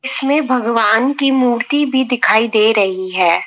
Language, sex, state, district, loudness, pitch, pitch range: Hindi, female, Rajasthan, Jaipur, -14 LUFS, 250 Hz, 220-265 Hz